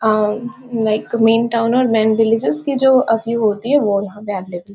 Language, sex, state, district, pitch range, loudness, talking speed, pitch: Hindi, female, Chhattisgarh, Korba, 210-235 Hz, -16 LUFS, 215 wpm, 225 Hz